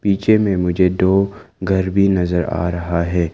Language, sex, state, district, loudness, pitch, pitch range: Hindi, male, Arunachal Pradesh, Lower Dibang Valley, -17 LUFS, 90 Hz, 85-95 Hz